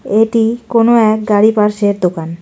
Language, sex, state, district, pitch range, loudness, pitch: Bengali, female, West Bengal, Darjeeling, 205-225 Hz, -12 LUFS, 215 Hz